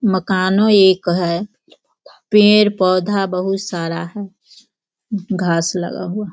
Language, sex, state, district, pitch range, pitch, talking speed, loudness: Hindi, female, Bihar, Sitamarhi, 180-205 Hz, 190 Hz, 105 wpm, -16 LUFS